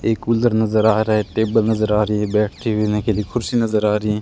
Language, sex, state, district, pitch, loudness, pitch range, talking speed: Hindi, male, Rajasthan, Bikaner, 110 Hz, -18 LUFS, 105-110 Hz, 270 wpm